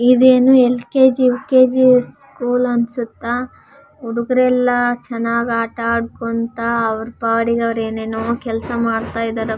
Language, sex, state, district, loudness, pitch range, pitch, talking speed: Kannada, female, Karnataka, Raichur, -16 LUFS, 230-250 Hz, 235 Hz, 55 wpm